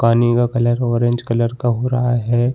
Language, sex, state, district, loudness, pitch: Hindi, male, Bihar, Saran, -17 LUFS, 120 Hz